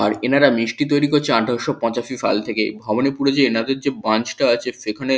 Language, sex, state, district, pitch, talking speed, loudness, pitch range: Bengali, male, West Bengal, Kolkata, 120 Hz, 195 wpm, -19 LUFS, 115-140 Hz